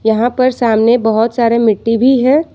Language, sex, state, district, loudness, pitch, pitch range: Hindi, female, Jharkhand, Ranchi, -12 LUFS, 235 Hz, 225-250 Hz